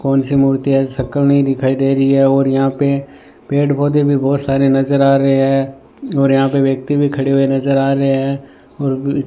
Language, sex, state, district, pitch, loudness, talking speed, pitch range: Hindi, male, Rajasthan, Bikaner, 135 Hz, -14 LUFS, 225 wpm, 135-140 Hz